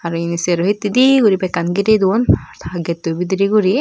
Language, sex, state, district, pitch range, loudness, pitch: Chakma, female, Tripura, Dhalai, 170-205 Hz, -16 LUFS, 190 Hz